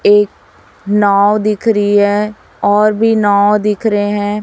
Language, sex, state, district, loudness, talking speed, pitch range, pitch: Hindi, female, Chhattisgarh, Raipur, -12 LUFS, 150 wpm, 205-210 Hz, 205 Hz